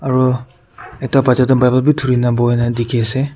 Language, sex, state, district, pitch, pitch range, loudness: Nagamese, male, Nagaland, Kohima, 125 Hz, 120-130 Hz, -15 LUFS